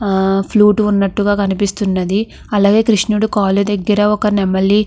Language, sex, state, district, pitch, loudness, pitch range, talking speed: Telugu, female, Andhra Pradesh, Krishna, 205 Hz, -14 LUFS, 195-210 Hz, 135 wpm